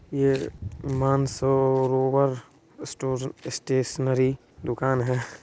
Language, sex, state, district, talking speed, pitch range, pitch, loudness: Hindi, male, Bihar, Supaul, 75 wpm, 130-135 Hz, 130 Hz, -25 LUFS